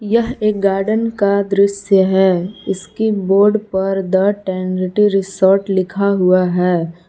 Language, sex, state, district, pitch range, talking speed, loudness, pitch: Hindi, female, Jharkhand, Palamu, 185-205 Hz, 125 wpm, -15 LUFS, 195 Hz